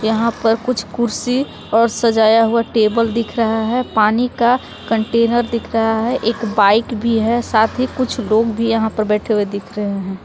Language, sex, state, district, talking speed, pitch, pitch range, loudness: Hindi, female, Jharkhand, Palamu, 195 wpm, 225 Hz, 220-235 Hz, -16 LUFS